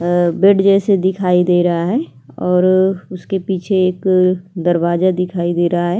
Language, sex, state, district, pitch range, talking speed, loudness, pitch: Hindi, female, Uttarakhand, Tehri Garhwal, 175-190 Hz, 160 wpm, -15 LUFS, 185 Hz